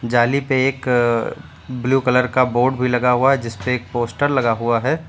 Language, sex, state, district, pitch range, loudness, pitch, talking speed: Hindi, male, Uttar Pradesh, Lucknow, 120-130 Hz, -18 LUFS, 125 Hz, 200 wpm